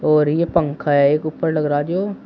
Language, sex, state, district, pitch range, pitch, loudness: Hindi, male, Uttar Pradesh, Shamli, 150-170 Hz, 155 Hz, -18 LUFS